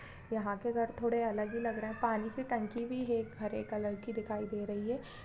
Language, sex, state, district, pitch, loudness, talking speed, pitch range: Hindi, female, Uttarakhand, Tehri Garhwal, 225 Hz, -37 LUFS, 250 wpm, 215-235 Hz